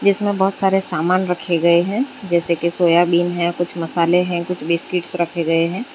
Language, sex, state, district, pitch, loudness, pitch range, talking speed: Hindi, female, Gujarat, Valsad, 175 Hz, -18 LUFS, 170-190 Hz, 190 wpm